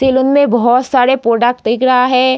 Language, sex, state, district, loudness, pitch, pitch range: Hindi, female, Uttar Pradesh, Deoria, -12 LUFS, 255 Hz, 240-260 Hz